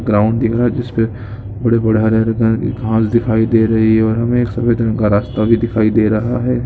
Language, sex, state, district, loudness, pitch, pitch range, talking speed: Hindi, male, Andhra Pradesh, Guntur, -15 LUFS, 115 Hz, 110-115 Hz, 245 wpm